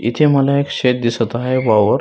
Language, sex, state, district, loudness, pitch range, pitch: Marathi, male, Maharashtra, Solapur, -16 LUFS, 120-140 Hz, 125 Hz